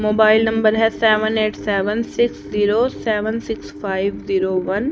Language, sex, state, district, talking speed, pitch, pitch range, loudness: Hindi, female, Haryana, Charkhi Dadri, 170 wpm, 215 Hz, 195-225 Hz, -18 LUFS